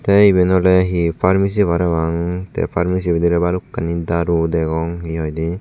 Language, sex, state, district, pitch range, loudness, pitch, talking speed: Chakma, male, Tripura, Dhalai, 85-90 Hz, -17 LUFS, 85 Hz, 150 wpm